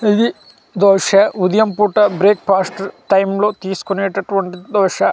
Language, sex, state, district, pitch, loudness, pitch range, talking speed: Telugu, male, Andhra Pradesh, Manyam, 195 Hz, -15 LUFS, 195-210 Hz, 115 wpm